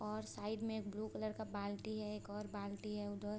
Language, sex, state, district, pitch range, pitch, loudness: Hindi, female, Bihar, Sitamarhi, 205-215 Hz, 210 Hz, -45 LUFS